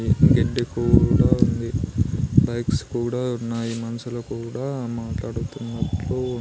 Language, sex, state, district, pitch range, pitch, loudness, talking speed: Telugu, male, Andhra Pradesh, Sri Satya Sai, 115-125 Hz, 120 Hz, -23 LUFS, 85 wpm